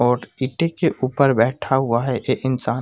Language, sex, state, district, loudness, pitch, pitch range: Hindi, male, Jharkhand, Sahebganj, -20 LUFS, 130 Hz, 125-135 Hz